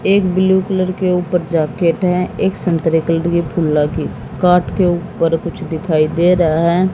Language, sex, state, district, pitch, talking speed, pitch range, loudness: Hindi, female, Haryana, Jhajjar, 175 Hz, 180 wpm, 165-185 Hz, -16 LUFS